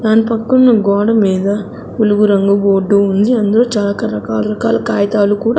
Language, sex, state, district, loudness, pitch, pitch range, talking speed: Telugu, female, Andhra Pradesh, Sri Satya Sai, -13 LUFS, 205 Hz, 200-225 Hz, 160 wpm